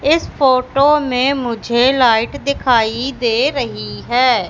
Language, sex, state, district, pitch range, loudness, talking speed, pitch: Hindi, female, Madhya Pradesh, Katni, 235-275 Hz, -15 LUFS, 120 wpm, 255 Hz